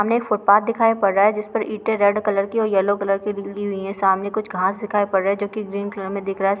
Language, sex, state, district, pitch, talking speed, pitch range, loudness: Hindi, female, Bihar, Lakhisarai, 205 Hz, 290 wpm, 195-210 Hz, -20 LUFS